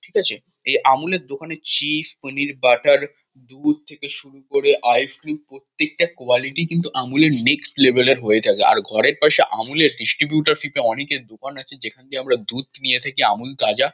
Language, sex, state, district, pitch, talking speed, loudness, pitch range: Bengali, male, West Bengal, Kolkata, 140 Hz, 180 wpm, -17 LUFS, 130-155 Hz